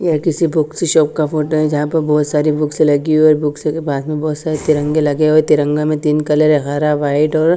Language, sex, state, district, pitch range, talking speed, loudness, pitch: Hindi, female, Bihar, Katihar, 150-155 Hz, 270 wpm, -15 LUFS, 155 Hz